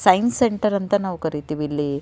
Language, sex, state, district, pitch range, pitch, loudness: Kannada, female, Karnataka, Raichur, 150-205 Hz, 190 Hz, -21 LUFS